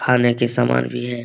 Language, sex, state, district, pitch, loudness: Hindi, male, Bihar, Lakhisarai, 120 Hz, -19 LUFS